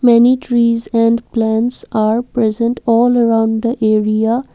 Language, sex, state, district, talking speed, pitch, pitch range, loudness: English, female, Assam, Kamrup Metropolitan, 130 wpm, 230 Hz, 225-240 Hz, -14 LUFS